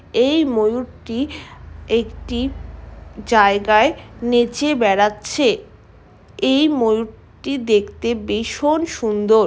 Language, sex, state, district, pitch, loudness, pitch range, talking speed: Bengali, female, West Bengal, Jalpaiguri, 235 Hz, -18 LUFS, 215-275 Hz, 70 wpm